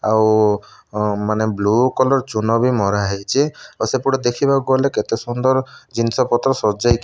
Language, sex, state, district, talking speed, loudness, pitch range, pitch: Odia, male, Odisha, Malkangiri, 135 wpm, -18 LUFS, 110-130 Hz, 120 Hz